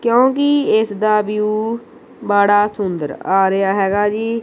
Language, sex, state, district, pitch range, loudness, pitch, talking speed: Punjabi, female, Punjab, Kapurthala, 200-225 Hz, -16 LUFS, 210 Hz, 135 wpm